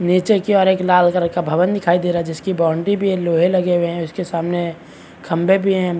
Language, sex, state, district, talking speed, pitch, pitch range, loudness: Hindi, male, Chhattisgarh, Bastar, 250 wpm, 175 Hz, 170-190 Hz, -17 LUFS